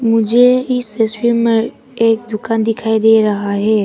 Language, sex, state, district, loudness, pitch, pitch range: Hindi, female, Arunachal Pradesh, Papum Pare, -14 LUFS, 225 Hz, 220-235 Hz